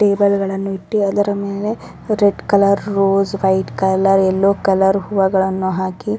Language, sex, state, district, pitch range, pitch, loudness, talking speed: Kannada, female, Karnataka, Raichur, 190-200 Hz, 195 Hz, -16 LUFS, 145 wpm